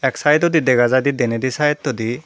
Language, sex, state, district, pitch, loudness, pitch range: Chakma, female, Tripura, Dhalai, 130 Hz, -17 LUFS, 125-150 Hz